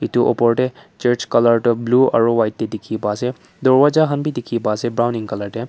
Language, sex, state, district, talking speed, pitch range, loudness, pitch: Nagamese, male, Nagaland, Kohima, 230 wpm, 115-125 Hz, -18 LUFS, 120 Hz